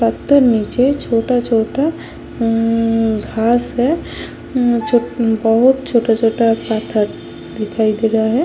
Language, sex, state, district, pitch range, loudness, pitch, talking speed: Hindi, female, Chhattisgarh, Sukma, 225-245 Hz, -15 LUFS, 230 Hz, 100 wpm